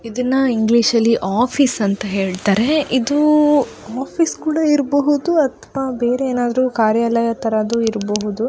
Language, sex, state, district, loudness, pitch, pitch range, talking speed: Kannada, female, Karnataka, Dakshina Kannada, -17 LUFS, 245 Hz, 225-275 Hz, 115 wpm